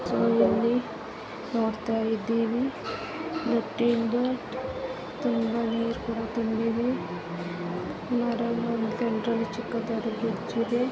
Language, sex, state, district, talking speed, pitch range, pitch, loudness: Kannada, female, Karnataka, Gulbarga, 45 wpm, 225-240 Hz, 230 Hz, -28 LUFS